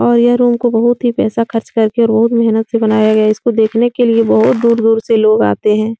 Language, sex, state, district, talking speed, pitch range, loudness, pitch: Hindi, female, Uttar Pradesh, Etah, 270 wpm, 220-235 Hz, -12 LUFS, 225 Hz